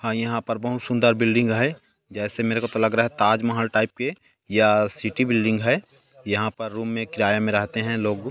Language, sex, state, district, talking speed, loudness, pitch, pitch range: Hindi, male, Chhattisgarh, Korba, 225 wpm, -23 LUFS, 115 Hz, 110-115 Hz